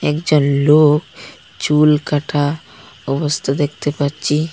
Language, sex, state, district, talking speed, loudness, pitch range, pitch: Bengali, female, Assam, Hailakandi, 80 wpm, -16 LUFS, 145-150 Hz, 150 Hz